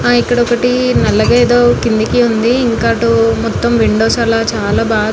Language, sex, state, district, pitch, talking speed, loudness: Telugu, female, Telangana, Nalgonda, 225 Hz, 150 wpm, -12 LUFS